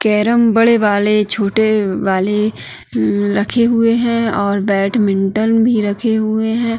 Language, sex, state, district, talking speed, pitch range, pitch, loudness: Hindi, female, Uttarakhand, Tehri Garhwal, 125 wpm, 200-230 Hz, 215 Hz, -14 LUFS